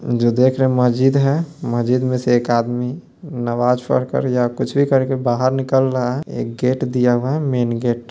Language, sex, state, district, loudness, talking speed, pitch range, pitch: Hindi, male, Bihar, Muzaffarpur, -18 LUFS, 220 wpm, 120-135 Hz, 125 Hz